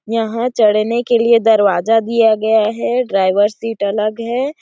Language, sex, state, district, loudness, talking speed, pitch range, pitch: Hindi, female, Chhattisgarh, Sarguja, -15 LUFS, 155 wpm, 215-235 Hz, 225 Hz